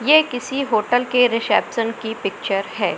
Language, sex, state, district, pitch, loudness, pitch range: Hindi, male, Madhya Pradesh, Katni, 245 Hz, -19 LUFS, 220-255 Hz